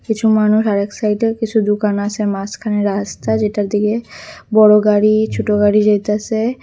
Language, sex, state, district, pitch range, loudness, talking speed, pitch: Bengali, female, Tripura, West Tripura, 205-220 Hz, -15 LUFS, 155 wpm, 210 Hz